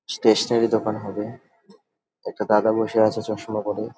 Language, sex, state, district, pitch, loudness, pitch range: Bengali, male, West Bengal, Dakshin Dinajpur, 110 Hz, -22 LUFS, 105-110 Hz